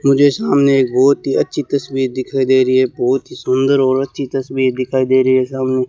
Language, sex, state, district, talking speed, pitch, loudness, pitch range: Hindi, male, Rajasthan, Bikaner, 225 wpm, 130 Hz, -15 LUFS, 130-140 Hz